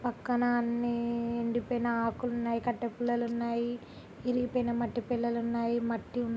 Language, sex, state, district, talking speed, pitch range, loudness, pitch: Telugu, female, Andhra Pradesh, Guntur, 130 wpm, 235-245 Hz, -32 LUFS, 235 Hz